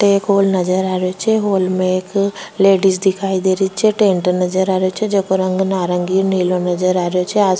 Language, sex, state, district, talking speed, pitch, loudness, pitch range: Rajasthani, female, Rajasthan, Nagaur, 235 wpm, 190 Hz, -16 LUFS, 185-195 Hz